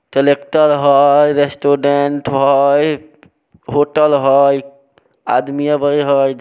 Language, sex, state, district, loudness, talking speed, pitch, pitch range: Maithili, male, Bihar, Samastipur, -13 LUFS, 85 wpm, 140 Hz, 140-145 Hz